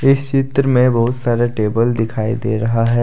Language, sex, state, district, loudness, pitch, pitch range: Hindi, male, Jharkhand, Deoghar, -16 LUFS, 120 Hz, 115-130 Hz